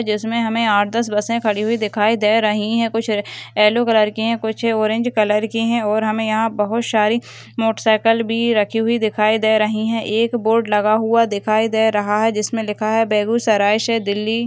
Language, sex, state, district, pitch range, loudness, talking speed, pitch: Hindi, female, Bihar, Begusarai, 215-230 Hz, -17 LUFS, 205 wpm, 220 Hz